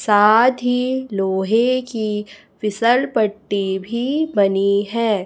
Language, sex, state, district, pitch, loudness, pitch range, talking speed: Hindi, female, Chhattisgarh, Raipur, 215 Hz, -18 LUFS, 200-245 Hz, 105 wpm